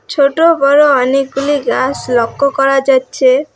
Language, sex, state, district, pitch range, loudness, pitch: Bengali, female, West Bengal, Alipurduar, 260-285 Hz, -12 LUFS, 275 Hz